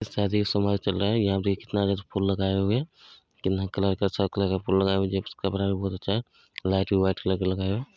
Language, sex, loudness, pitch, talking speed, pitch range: Maithili, male, -26 LUFS, 100 Hz, 300 wpm, 95-100 Hz